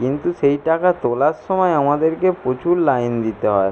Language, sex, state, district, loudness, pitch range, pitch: Bengali, male, West Bengal, Jalpaiguri, -18 LUFS, 125-175 Hz, 145 Hz